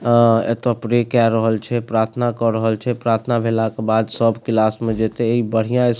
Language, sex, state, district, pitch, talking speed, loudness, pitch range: Maithili, male, Bihar, Supaul, 115 Hz, 220 wpm, -18 LUFS, 110-120 Hz